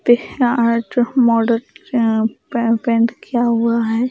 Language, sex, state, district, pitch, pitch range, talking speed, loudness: Hindi, female, Bihar, Kaimur, 235 Hz, 230-240 Hz, 115 wpm, -17 LUFS